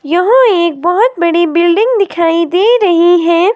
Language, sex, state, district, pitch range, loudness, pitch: Hindi, female, Himachal Pradesh, Shimla, 340-420 Hz, -10 LUFS, 350 Hz